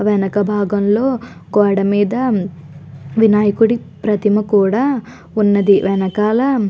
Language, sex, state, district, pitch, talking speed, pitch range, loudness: Telugu, female, Andhra Pradesh, Guntur, 205 Hz, 70 wpm, 200-225 Hz, -15 LUFS